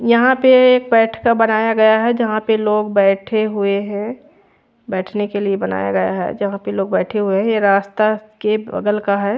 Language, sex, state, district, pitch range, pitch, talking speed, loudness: Hindi, female, Odisha, Khordha, 200-225 Hz, 215 Hz, 210 wpm, -16 LUFS